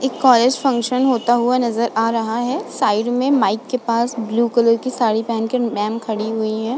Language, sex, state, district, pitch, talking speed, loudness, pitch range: Hindi, female, Uttar Pradesh, Budaun, 235 Hz, 205 wpm, -18 LUFS, 225-255 Hz